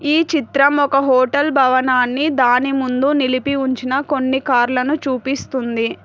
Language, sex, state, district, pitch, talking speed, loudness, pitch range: Telugu, female, Telangana, Hyderabad, 265 Hz, 130 wpm, -16 LUFS, 255-280 Hz